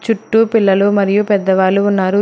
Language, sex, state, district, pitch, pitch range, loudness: Telugu, female, Telangana, Hyderabad, 200 Hz, 195-215 Hz, -13 LUFS